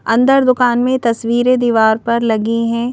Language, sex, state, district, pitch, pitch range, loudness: Hindi, female, Madhya Pradesh, Bhopal, 235 Hz, 230-250 Hz, -14 LUFS